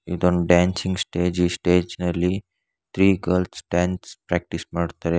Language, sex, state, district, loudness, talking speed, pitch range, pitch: Kannada, male, Karnataka, Bangalore, -22 LUFS, 125 wpm, 85-90 Hz, 90 Hz